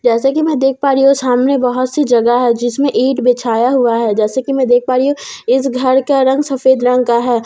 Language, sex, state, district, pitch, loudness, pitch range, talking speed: Hindi, female, Bihar, Katihar, 255 Hz, -13 LUFS, 245-270 Hz, 265 wpm